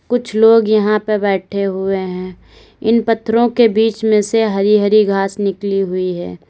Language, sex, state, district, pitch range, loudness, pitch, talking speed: Hindi, female, Uttar Pradesh, Lalitpur, 195-225 Hz, -15 LUFS, 210 Hz, 165 wpm